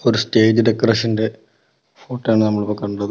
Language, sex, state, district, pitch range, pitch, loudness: Malayalam, male, Kerala, Kollam, 105-115 Hz, 110 Hz, -17 LUFS